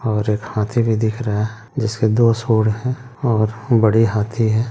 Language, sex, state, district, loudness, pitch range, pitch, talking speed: Hindi, male, Bihar, Madhepura, -18 LUFS, 110-115 Hz, 110 Hz, 190 wpm